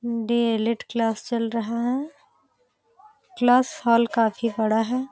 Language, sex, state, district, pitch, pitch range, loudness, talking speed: Hindi, female, Uttar Pradesh, Jalaun, 235 Hz, 230-255 Hz, -23 LUFS, 130 wpm